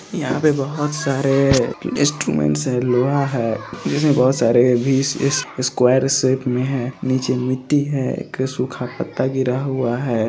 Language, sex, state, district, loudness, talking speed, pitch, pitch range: Hindi, male, Bihar, Purnia, -19 LUFS, 80 wpm, 130 Hz, 125-135 Hz